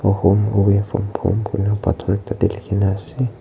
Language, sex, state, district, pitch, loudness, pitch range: Nagamese, male, Nagaland, Kohima, 100 Hz, -19 LUFS, 100-105 Hz